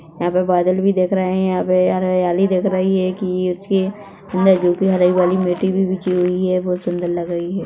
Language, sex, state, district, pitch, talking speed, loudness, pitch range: Hindi, male, Chhattisgarh, Korba, 185 Hz, 150 wpm, -17 LUFS, 180-190 Hz